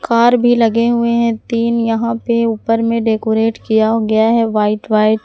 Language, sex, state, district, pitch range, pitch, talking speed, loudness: Hindi, female, Jharkhand, Palamu, 220-235 Hz, 230 Hz, 195 wpm, -14 LUFS